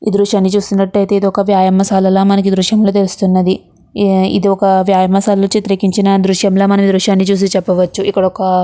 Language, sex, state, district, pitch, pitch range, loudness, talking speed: Telugu, female, Andhra Pradesh, Guntur, 195 Hz, 190-200 Hz, -12 LUFS, 180 wpm